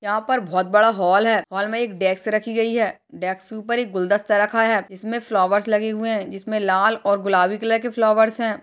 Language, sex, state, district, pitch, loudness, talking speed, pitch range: Hindi, male, Uttar Pradesh, Hamirpur, 215 Hz, -20 LUFS, 235 wpm, 195-225 Hz